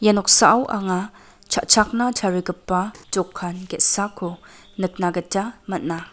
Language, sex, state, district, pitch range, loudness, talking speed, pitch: Garo, female, Meghalaya, West Garo Hills, 180-215 Hz, -20 LUFS, 100 wpm, 190 Hz